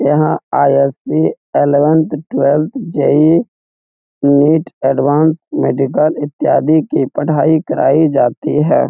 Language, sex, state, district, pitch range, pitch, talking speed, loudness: Hindi, male, Bihar, Muzaffarpur, 140-155 Hz, 150 Hz, 95 wpm, -13 LUFS